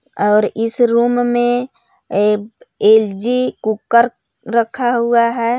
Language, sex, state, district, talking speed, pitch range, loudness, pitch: Hindi, female, Jharkhand, Garhwa, 95 wpm, 220-240 Hz, -15 LUFS, 235 Hz